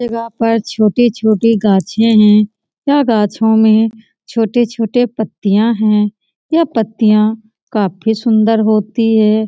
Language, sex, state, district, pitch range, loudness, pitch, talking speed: Hindi, female, Bihar, Lakhisarai, 215-230 Hz, -13 LUFS, 220 Hz, 120 wpm